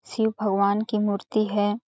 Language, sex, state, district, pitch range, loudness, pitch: Hindi, female, Chhattisgarh, Balrampur, 205-220 Hz, -24 LUFS, 210 Hz